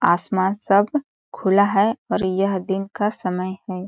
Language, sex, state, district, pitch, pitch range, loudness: Hindi, female, Chhattisgarh, Sarguja, 195 Hz, 185-205 Hz, -21 LUFS